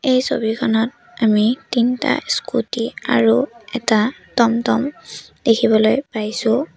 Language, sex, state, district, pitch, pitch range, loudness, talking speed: Assamese, female, Assam, Sonitpur, 235 Hz, 225-260 Hz, -18 LUFS, 90 wpm